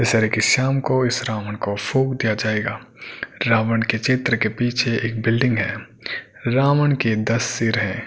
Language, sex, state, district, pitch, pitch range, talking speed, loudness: Hindi, male, Delhi, New Delhi, 115 Hz, 110-125 Hz, 180 wpm, -20 LUFS